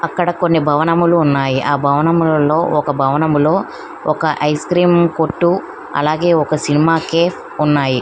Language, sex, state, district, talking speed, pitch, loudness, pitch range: Telugu, female, Andhra Pradesh, Krishna, 110 wpm, 155 Hz, -15 LUFS, 145-170 Hz